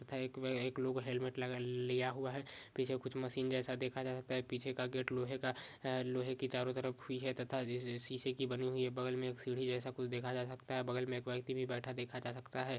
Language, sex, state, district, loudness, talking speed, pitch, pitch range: Hindi, male, Maharashtra, Pune, -41 LUFS, 260 wpm, 130 Hz, 125-130 Hz